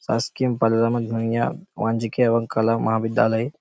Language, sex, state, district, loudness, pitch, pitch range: Hindi, male, Chhattisgarh, Raigarh, -22 LUFS, 115 Hz, 115-120 Hz